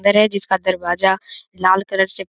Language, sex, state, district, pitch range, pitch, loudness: Hindi, male, Bihar, Jamui, 185-195 Hz, 190 Hz, -17 LUFS